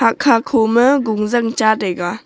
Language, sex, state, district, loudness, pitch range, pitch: Wancho, female, Arunachal Pradesh, Longding, -15 LUFS, 220-240 Hz, 230 Hz